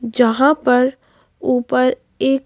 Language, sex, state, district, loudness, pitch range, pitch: Hindi, female, Madhya Pradesh, Bhopal, -16 LUFS, 245-270 Hz, 255 Hz